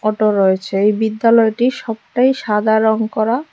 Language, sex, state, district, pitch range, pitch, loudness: Bengali, female, Tripura, West Tripura, 215-235 Hz, 220 Hz, -15 LUFS